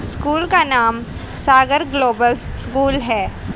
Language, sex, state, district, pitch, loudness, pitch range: Hindi, female, Haryana, Charkhi Dadri, 270 Hz, -16 LUFS, 240-290 Hz